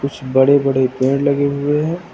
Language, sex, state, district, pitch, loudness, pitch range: Hindi, male, Uttar Pradesh, Lucknow, 140 Hz, -16 LUFS, 130-145 Hz